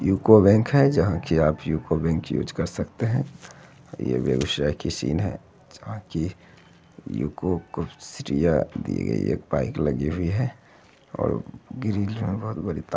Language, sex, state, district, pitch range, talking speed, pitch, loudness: Hindi, male, Bihar, Begusarai, 75-110 Hz, 145 wpm, 90 Hz, -24 LUFS